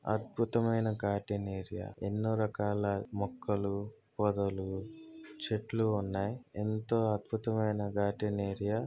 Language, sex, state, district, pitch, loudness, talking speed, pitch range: Telugu, male, Andhra Pradesh, Guntur, 105 Hz, -34 LUFS, 100 wpm, 100-110 Hz